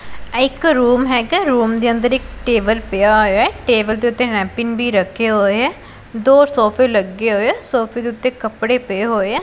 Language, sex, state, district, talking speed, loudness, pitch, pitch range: Punjabi, female, Punjab, Pathankot, 185 wpm, -15 LUFS, 235 Hz, 215-250 Hz